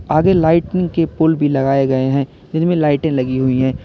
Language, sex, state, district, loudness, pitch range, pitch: Hindi, male, Uttar Pradesh, Lalitpur, -16 LUFS, 135-165 Hz, 145 Hz